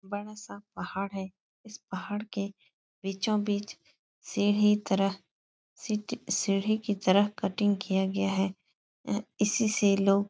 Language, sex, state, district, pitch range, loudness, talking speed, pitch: Hindi, female, Uttar Pradesh, Etah, 195-210 Hz, -29 LUFS, 135 wpm, 200 Hz